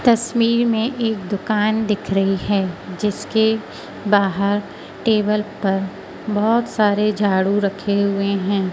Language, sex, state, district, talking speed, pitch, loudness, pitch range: Hindi, female, Madhya Pradesh, Katni, 115 wpm, 205 Hz, -19 LUFS, 200-220 Hz